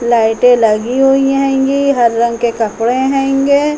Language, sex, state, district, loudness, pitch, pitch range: Hindi, female, Uttar Pradesh, Hamirpur, -12 LUFS, 255 Hz, 235-270 Hz